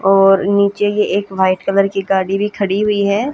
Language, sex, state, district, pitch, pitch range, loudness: Hindi, female, Haryana, Jhajjar, 200 Hz, 195-205 Hz, -15 LUFS